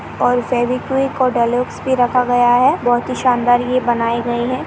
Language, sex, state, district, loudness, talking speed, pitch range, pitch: Hindi, female, Chhattisgarh, Sarguja, -16 LUFS, 190 wpm, 240-255 Hz, 245 Hz